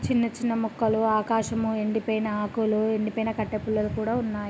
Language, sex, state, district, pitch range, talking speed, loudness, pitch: Telugu, female, Andhra Pradesh, Srikakulam, 215-225 Hz, 145 wpm, -26 LUFS, 220 Hz